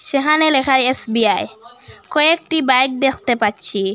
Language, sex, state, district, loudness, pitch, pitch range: Bengali, female, Assam, Hailakandi, -15 LUFS, 260 Hz, 230-300 Hz